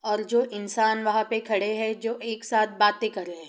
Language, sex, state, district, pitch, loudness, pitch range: Hindi, female, Bihar, East Champaran, 220 Hz, -25 LUFS, 210-225 Hz